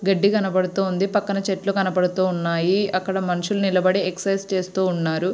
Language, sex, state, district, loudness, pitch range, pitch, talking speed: Telugu, female, Andhra Pradesh, Srikakulam, -21 LUFS, 185-195 Hz, 190 Hz, 110 wpm